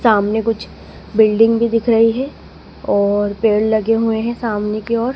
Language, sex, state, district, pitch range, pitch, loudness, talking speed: Hindi, female, Madhya Pradesh, Dhar, 215-230 Hz, 225 Hz, -16 LUFS, 175 wpm